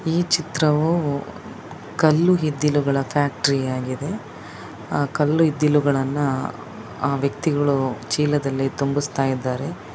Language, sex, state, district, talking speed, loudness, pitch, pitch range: Kannada, female, Karnataka, Dakshina Kannada, 70 wpm, -21 LUFS, 145 Hz, 135-155 Hz